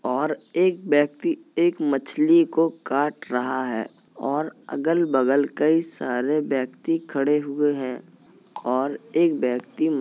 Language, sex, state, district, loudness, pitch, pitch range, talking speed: Hindi, female, Uttar Pradesh, Jalaun, -23 LUFS, 150 Hz, 130-165 Hz, 130 wpm